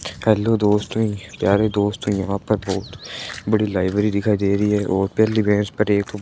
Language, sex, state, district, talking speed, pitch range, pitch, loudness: Hindi, female, Rajasthan, Bikaner, 175 wpm, 100-105 Hz, 105 Hz, -20 LUFS